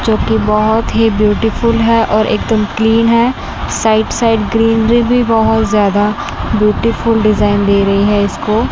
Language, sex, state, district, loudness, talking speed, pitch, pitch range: Hindi, female, Chandigarh, Chandigarh, -12 LUFS, 160 wpm, 220 Hz, 210-230 Hz